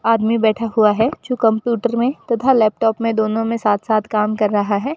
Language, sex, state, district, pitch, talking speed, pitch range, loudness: Hindi, female, Rajasthan, Bikaner, 225 Hz, 215 wpm, 215-235 Hz, -17 LUFS